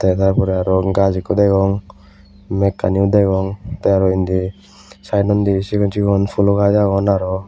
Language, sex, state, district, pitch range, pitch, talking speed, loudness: Chakma, male, Tripura, West Tripura, 95-100 Hz, 100 Hz, 145 wpm, -16 LUFS